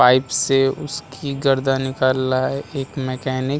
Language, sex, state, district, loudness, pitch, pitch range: Hindi, male, Uttar Pradesh, Muzaffarnagar, -20 LUFS, 135 Hz, 130-140 Hz